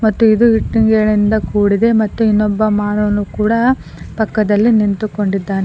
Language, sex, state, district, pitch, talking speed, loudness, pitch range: Kannada, female, Karnataka, Koppal, 215 Hz, 105 wpm, -14 LUFS, 205-220 Hz